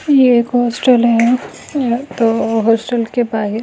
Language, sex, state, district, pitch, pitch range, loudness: Hindi, female, Delhi, New Delhi, 235 Hz, 225-250 Hz, -14 LUFS